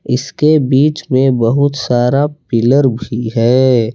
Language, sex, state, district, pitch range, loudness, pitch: Hindi, male, Jharkhand, Palamu, 120-140 Hz, -13 LUFS, 130 Hz